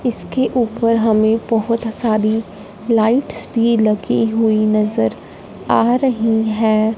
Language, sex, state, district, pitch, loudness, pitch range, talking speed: Hindi, female, Punjab, Fazilka, 225 Hz, -16 LUFS, 215-230 Hz, 110 wpm